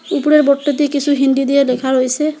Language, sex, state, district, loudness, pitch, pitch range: Bengali, female, West Bengal, Alipurduar, -14 LUFS, 280 Hz, 270-295 Hz